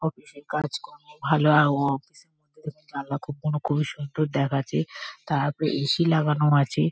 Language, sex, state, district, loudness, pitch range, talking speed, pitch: Bengali, female, West Bengal, Kolkata, -25 LUFS, 140-155 Hz, 155 wpm, 150 Hz